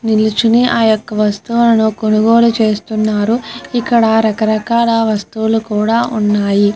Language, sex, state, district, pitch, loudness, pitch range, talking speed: Telugu, female, Andhra Pradesh, Guntur, 220 Hz, -13 LUFS, 215-230 Hz, 105 wpm